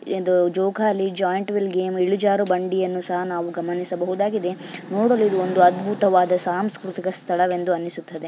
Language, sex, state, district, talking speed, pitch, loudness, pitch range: Kannada, female, Karnataka, Bijapur, 125 wpm, 185 Hz, -21 LUFS, 180-195 Hz